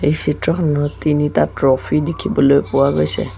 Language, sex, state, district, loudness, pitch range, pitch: Assamese, male, Assam, Sonitpur, -16 LUFS, 135-150 Hz, 145 Hz